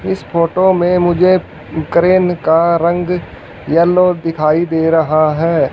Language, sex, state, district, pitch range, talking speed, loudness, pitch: Hindi, male, Haryana, Rohtak, 160-180 Hz, 125 wpm, -13 LUFS, 170 Hz